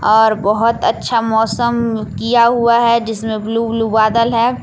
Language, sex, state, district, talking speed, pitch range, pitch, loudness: Hindi, female, Jharkhand, Palamu, 155 wpm, 220-235 Hz, 230 Hz, -14 LUFS